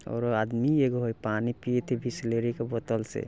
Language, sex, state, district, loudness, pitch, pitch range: Bajjika, male, Bihar, Vaishali, -29 LUFS, 120 Hz, 115-125 Hz